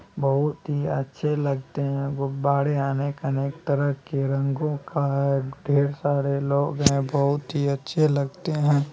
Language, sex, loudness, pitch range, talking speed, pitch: Hindi, male, -24 LUFS, 140-145 Hz, 135 wpm, 140 Hz